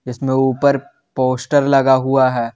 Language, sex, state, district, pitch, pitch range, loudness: Hindi, male, Jharkhand, Garhwa, 130 Hz, 130-135 Hz, -16 LUFS